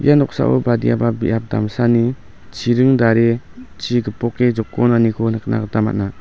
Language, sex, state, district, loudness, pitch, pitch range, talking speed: Garo, male, Meghalaya, West Garo Hills, -17 LUFS, 115 Hz, 110-120 Hz, 125 wpm